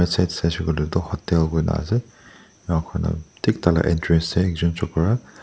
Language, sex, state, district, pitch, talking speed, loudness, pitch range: Nagamese, male, Nagaland, Dimapur, 85 Hz, 175 wpm, -22 LUFS, 80-90 Hz